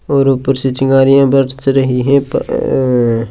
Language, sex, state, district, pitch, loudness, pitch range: Marwari, male, Rajasthan, Churu, 135 Hz, -12 LUFS, 130-135 Hz